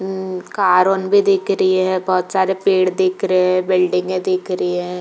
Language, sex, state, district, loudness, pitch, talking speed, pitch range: Hindi, female, Uttar Pradesh, Jalaun, -17 LUFS, 185 Hz, 190 wpm, 185-190 Hz